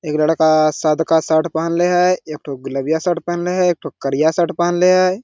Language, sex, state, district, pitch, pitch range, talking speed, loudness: Hindi, male, Jharkhand, Sahebganj, 160 Hz, 155-175 Hz, 240 wpm, -17 LUFS